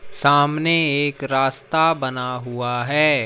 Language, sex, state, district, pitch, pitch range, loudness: Hindi, male, Madhya Pradesh, Umaria, 140 Hz, 125-150 Hz, -19 LUFS